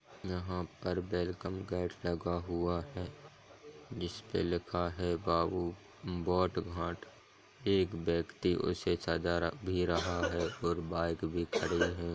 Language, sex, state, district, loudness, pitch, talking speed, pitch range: Hindi, male, Jharkhand, Jamtara, -35 LUFS, 85 Hz, 100 wpm, 85-90 Hz